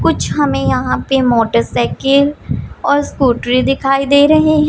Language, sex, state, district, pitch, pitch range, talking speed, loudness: Hindi, female, Punjab, Pathankot, 270 Hz, 255-285 Hz, 130 wpm, -13 LUFS